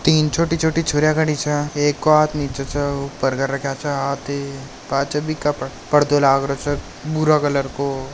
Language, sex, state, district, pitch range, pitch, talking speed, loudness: Marwari, male, Rajasthan, Nagaur, 140-150 Hz, 145 Hz, 190 wpm, -20 LUFS